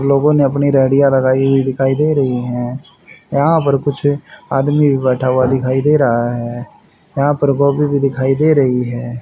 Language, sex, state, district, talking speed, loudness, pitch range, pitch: Hindi, male, Haryana, Rohtak, 190 wpm, -14 LUFS, 130-145 Hz, 135 Hz